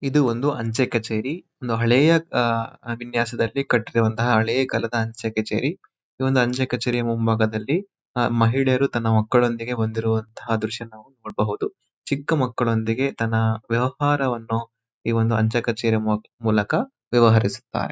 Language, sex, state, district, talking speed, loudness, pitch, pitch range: Kannada, male, Karnataka, Mysore, 120 wpm, -22 LUFS, 115 Hz, 110-125 Hz